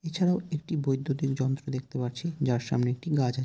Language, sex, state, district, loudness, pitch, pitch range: Bengali, male, West Bengal, Jalpaiguri, -29 LUFS, 140 Hz, 130-155 Hz